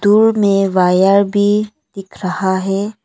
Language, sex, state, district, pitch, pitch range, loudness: Hindi, female, Arunachal Pradesh, Longding, 195 Hz, 190-205 Hz, -14 LUFS